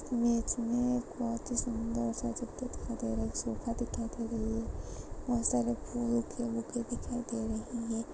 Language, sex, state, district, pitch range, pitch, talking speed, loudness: Hindi, female, Goa, North and South Goa, 220-240 Hz, 235 Hz, 190 wpm, -35 LUFS